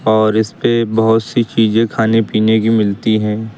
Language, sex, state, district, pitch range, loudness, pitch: Hindi, male, Uttar Pradesh, Lucknow, 110-115 Hz, -14 LUFS, 110 Hz